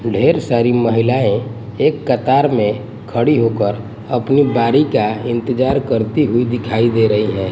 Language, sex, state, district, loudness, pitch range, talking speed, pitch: Hindi, male, Gujarat, Gandhinagar, -15 LUFS, 110-130 Hz, 145 wpm, 120 Hz